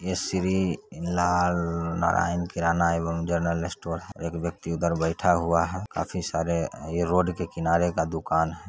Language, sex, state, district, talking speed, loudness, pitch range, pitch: Hindi, male, Bihar, Saran, 170 wpm, -26 LUFS, 85-90 Hz, 85 Hz